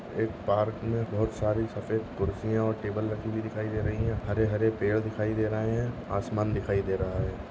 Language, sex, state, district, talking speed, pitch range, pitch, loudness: Hindi, male, Goa, North and South Goa, 215 wpm, 105-110 Hz, 110 Hz, -30 LUFS